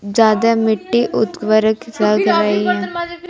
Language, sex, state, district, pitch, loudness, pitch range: Hindi, female, Bihar, Kaimur, 220 Hz, -16 LUFS, 210-230 Hz